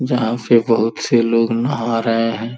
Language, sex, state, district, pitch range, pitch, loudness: Hindi, male, Uttar Pradesh, Gorakhpur, 115-120 Hz, 115 Hz, -17 LUFS